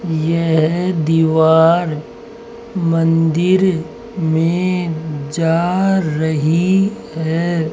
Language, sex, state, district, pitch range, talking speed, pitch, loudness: Hindi, male, Rajasthan, Jaipur, 160-185 Hz, 55 wpm, 165 Hz, -16 LUFS